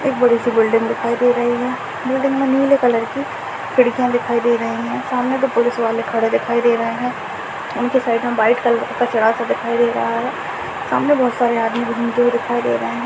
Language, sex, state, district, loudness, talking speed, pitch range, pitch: Hindi, female, Bihar, Saharsa, -18 LUFS, 225 wpm, 235-250 Hz, 240 Hz